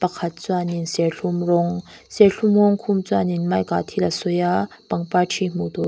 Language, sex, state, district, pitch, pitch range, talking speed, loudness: Mizo, female, Mizoram, Aizawl, 175 Hz, 165-190 Hz, 185 wpm, -21 LUFS